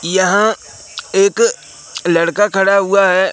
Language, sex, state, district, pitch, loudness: Hindi, male, Madhya Pradesh, Katni, 200 Hz, -13 LUFS